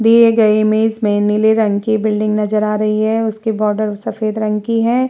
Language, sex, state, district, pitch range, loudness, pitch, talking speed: Hindi, female, Uttar Pradesh, Muzaffarnagar, 215-220 Hz, -15 LUFS, 215 Hz, 200 wpm